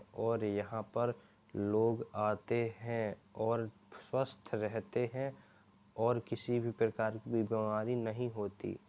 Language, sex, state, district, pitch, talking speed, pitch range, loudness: Hindi, male, Uttar Pradesh, Jalaun, 110 Hz, 115 wpm, 105-120 Hz, -37 LUFS